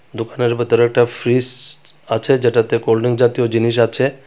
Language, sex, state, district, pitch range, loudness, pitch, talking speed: Bengali, male, Tripura, West Tripura, 115-125 Hz, -16 LUFS, 120 Hz, 155 wpm